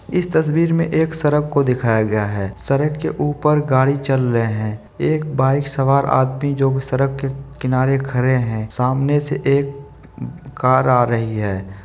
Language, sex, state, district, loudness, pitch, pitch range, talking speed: Maithili, male, Bihar, Supaul, -18 LUFS, 135 Hz, 120-145 Hz, 160 wpm